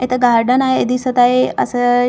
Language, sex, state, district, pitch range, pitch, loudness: Marathi, female, Maharashtra, Gondia, 245-255 Hz, 250 Hz, -14 LUFS